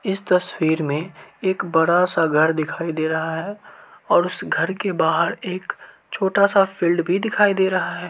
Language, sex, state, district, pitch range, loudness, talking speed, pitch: Hindi, male, Uttar Pradesh, Varanasi, 160-195 Hz, -20 LUFS, 170 wpm, 180 Hz